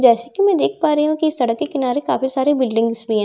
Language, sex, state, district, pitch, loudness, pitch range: Hindi, female, Bihar, Katihar, 265 Hz, -17 LUFS, 235-310 Hz